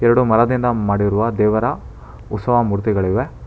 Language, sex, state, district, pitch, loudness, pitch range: Kannada, male, Karnataka, Bangalore, 110 Hz, -17 LUFS, 100-120 Hz